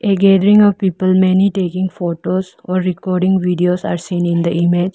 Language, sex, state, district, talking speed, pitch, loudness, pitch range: English, female, Arunachal Pradesh, Lower Dibang Valley, 180 wpm, 185 Hz, -15 LUFS, 180-190 Hz